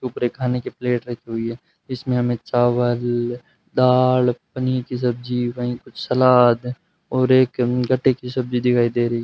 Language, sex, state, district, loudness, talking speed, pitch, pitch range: Hindi, male, Rajasthan, Bikaner, -20 LUFS, 175 wpm, 125 Hz, 120-130 Hz